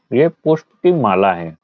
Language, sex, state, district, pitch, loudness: Hindi, male, Bihar, Araria, 130 Hz, -16 LUFS